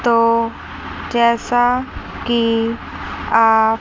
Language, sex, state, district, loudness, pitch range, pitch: Hindi, female, Chandigarh, Chandigarh, -17 LUFS, 225-240 Hz, 230 Hz